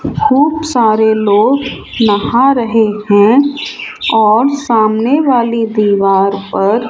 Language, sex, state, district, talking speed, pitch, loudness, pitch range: Hindi, male, Rajasthan, Jaipur, 105 wpm, 225 Hz, -11 LUFS, 210-270 Hz